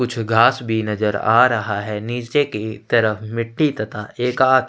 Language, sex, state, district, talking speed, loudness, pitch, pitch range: Hindi, male, Chhattisgarh, Sukma, 180 wpm, -19 LUFS, 115 Hz, 110-125 Hz